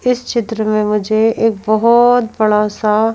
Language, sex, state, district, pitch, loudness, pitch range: Hindi, female, Madhya Pradesh, Bhopal, 220 Hz, -14 LUFS, 215-235 Hz